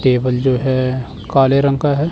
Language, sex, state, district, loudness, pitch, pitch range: Hindi, male, Chandigarh, Chandigarh, -16 LUFS, 130 Hz, 130-140 Hz